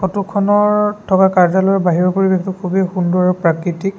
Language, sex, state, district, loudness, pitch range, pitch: Assamese, male, Assam, Sonitpur, -15 LUFS, 180-195 Hz, 190 Hz